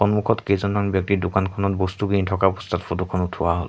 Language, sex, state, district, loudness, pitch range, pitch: Assamese, male, Assam, Sonitpur, -22 LUFS, 90-100 Hz, 95 Hz